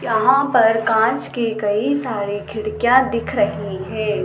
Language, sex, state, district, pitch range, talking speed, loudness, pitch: Hindi, female, Madhya Pradesh, Dhar, 210-245 Hz, 140 wpm, -18 LUFS, 220 Hz